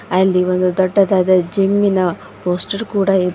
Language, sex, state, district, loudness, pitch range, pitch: Kannada, female, Karnataka, Bidar, -16 LUFS, 180-195 Hz, 185 Hz